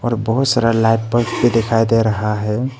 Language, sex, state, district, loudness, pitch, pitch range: Hindi, male, Arunachal Pradesh, Papum Pare, -16 LUFS, 115 Hz, 110-120 Hz